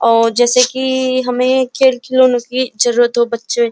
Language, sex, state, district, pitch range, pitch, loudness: Hindi, female, Uttar Pradesh, Jyotiba Phule Nagar, 240-255 Hz, 250 Hz, -13 LUFS